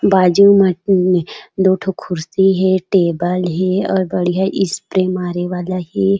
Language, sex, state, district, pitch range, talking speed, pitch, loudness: Chhattisgarhi, female, Chhattisgarh, Raigarh, 175-190 Hz, 135 wpm, 185 Hz, -15 LUFS